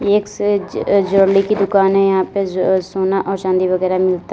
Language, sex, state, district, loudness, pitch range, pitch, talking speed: Hindi, female, Uttar Pradesh, Lalitpur, -16 LUFS, 185-200 Hz, 195 Hz, 195 wpm